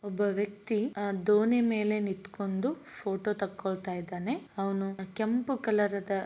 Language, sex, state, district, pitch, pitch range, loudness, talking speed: Kannada, female, Karnataka, Raichur, 205 Hz, 195-220 Hz, -31 LUFS, 115 wpm